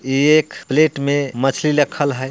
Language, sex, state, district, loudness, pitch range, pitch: Bhojpuri, male, Bihar, Muzaffarpur, -17 LUFS, 135-150 Hz, 145 Hz